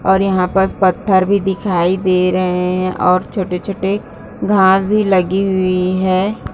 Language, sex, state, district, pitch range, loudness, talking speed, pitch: Hindi, female, Uttarakhand, Uttarkashi, 185-195 Hz, -15 LUFS, 145 wpm, 190 Hz